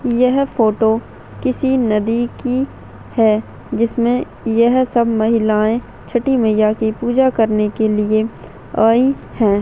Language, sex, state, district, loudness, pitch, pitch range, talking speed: Hindi, female, Bihar, Madhepura, -16 LUFS, 230 Hz, 220-250 Hz, 120 wpm